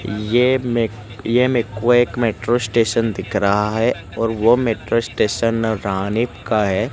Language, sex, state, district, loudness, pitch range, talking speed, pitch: Hindi, male, Gujarat, Gandhinagar, -18 LUFS, 105-120 Hz, 145 wpm, 115 Hz